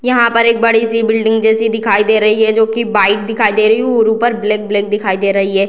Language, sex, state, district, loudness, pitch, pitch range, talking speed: Hindi, female, Bihar, Sitamarhi, -12 LUFS, 220 Hz, 210-230 Hz, 285 wpm